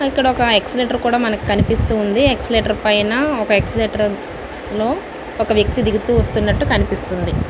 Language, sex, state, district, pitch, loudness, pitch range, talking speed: Telugu, female, Andhra Pradesh, Visakhapatnam, 225 Hz, -17 LUFS, 215-250 Hz, 130 wpm